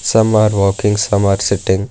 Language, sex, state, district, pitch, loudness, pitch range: English, male, Karnataka, Bangalore, 100 Hz, -14 LUFS, 100-110 Hz